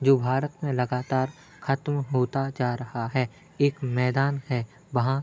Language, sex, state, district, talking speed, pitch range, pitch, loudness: Hindi, male, Uttar Pradesh, Hamirpur, 160 wpm, 125-140 Hz, 130 Hz, -27 LUFS